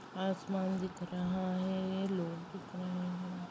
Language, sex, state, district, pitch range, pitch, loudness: Hindi, female, Chhattisgarh, Bastar, 180-190 Hz, 185 Hz, -38 LUFS